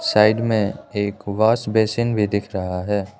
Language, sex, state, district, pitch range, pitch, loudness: Hindi, male, Arunachal Pradesh, Lower Dibang Valley, 100-110 Hz, 105 Hz, -20 LUFS